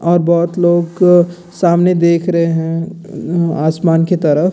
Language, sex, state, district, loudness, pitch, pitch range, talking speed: Hindi, male, Bihar, Gaya, -13 LUFS, 170 Hz, 165-175 Hz, 135 wpm